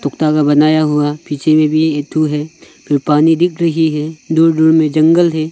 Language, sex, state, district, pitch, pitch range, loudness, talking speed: Hindi, male, Arunachal Pradesh, Longding, 155 Hz, 150-160 Hz, -13 LUFS, 205 wpm